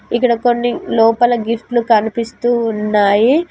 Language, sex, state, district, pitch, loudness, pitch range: Telugu, female, Telangana, Mahabubabad, 235 Hz, -15 LUFS, 225-240 Hz